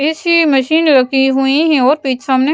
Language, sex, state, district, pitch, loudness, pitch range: Hindi, female, Bihar, West Champaran, 275 Hz, -12 LUFS, 265-310 Hz